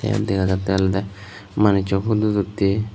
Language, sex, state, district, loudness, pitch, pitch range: Chakma, male, Tripura, Unakoti, -20 LUFS, 100 Hz, 95-105 Hz